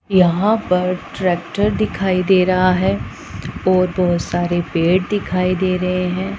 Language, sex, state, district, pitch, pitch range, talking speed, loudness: Hindi, female, Punjab, Pathankot, 185 Hz, 180-190 Hz, 140 wpm, -17 LUFS